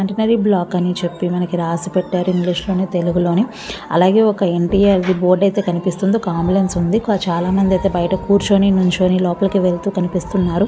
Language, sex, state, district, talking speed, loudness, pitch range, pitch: Telugu, female, Andhra Pradesh, Visakhapatnam, 175 wpm, -16 LUFS, 180-195 Hz, 185 Hz